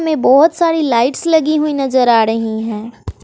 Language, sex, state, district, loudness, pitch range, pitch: Hindi, female, Bihar, West Champaran, -13 LUFS, 230-310 Hz, 270 Hz